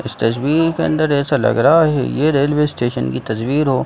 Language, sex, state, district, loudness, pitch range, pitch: Hindi, male, Jharkhand, Sahebganj, -16 LUFS, 120-150 Hz, 140 Hz